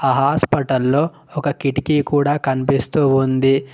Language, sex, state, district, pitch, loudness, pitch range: Telugu, male, Telangana, Mahabubabad, 140 Hz, -18 LUFS, 135-145 Hz